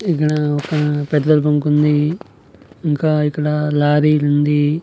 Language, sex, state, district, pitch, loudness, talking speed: Telugu, male, Andhra Pradesh, Annamaya, 150 Hz, -16 LUFS, 110 wpm